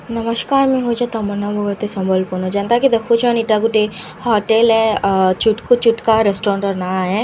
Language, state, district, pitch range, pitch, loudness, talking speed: Sambalpuri, Odisha, Sambalpur, 200-230 Hz, 220 Hz, -16 LUFS, 180 wpm